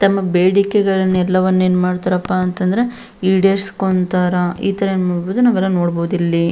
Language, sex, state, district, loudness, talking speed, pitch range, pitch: Kannada, female, Karnataka, Belgaum, -16 LUFS, 110 wpm, 180-195 Hz, 185 Hz